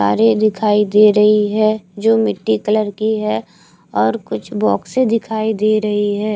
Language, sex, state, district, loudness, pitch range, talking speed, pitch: Hindi, female, Bihar, Katihar, -16 LUFS, 205-220 Hz, 160 wpm, 215 Hz